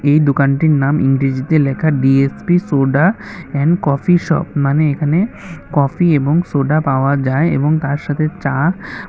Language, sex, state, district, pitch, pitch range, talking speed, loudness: Bengali, male, Tripura, West Tripura, 145 Hz, 140-165 Hz, 140 wpm, -15 LUFS